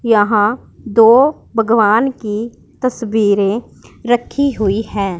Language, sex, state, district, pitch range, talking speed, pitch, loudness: Hindi, female, Punjab, Pathankot, 210-240 Hz, 90 wpm, 225 Hz, -15 LUFS